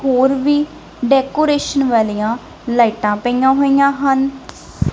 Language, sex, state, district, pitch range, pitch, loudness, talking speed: Punjabi, female, Punjab, Kapurthala, 240-280 Hz, 265 Hz, -16 LUFS, 95 wpm